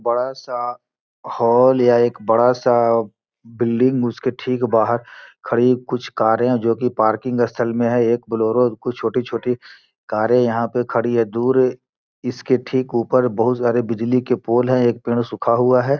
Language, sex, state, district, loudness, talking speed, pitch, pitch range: Hindi, male, Bihar, Gopalganj, -18 LUFS, 170 wpm, 120 Hz, 115-125 Hz